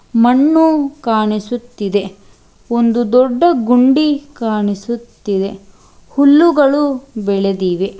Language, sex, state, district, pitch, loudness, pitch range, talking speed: Kannada, female, Karnataka, Bangalore, 235 Hz, -14 LUFS, 205-280 Hz, 60 wpm